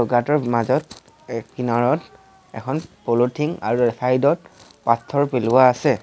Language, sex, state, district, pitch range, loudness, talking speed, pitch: Assamese, male, Assam, Sonitpur, 120-150 Hz, -20 LUFS, 120 wpm, 125 Hz